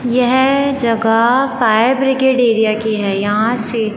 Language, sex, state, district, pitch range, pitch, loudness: Hindi, female, Chandigarh, Chandigarh, 220-260 Hz, 235 Hz, -14 LUFS